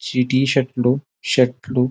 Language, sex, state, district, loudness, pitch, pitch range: Telugu, male, Telangana, Nalgonda, -19 LUFS, 125 Hz, 125-135 Hz